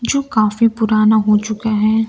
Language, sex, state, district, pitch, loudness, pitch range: Hindi, female, Bihar, Kaimur, 220 Hz, -15 LUFS, 215-225 Hz